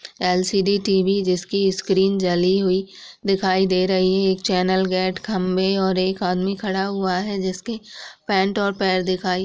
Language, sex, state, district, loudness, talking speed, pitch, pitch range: Hindi, female, Bihar, Madhepura, -20 LUFS, 165 wpm, 190 Hz, 185-195 Hz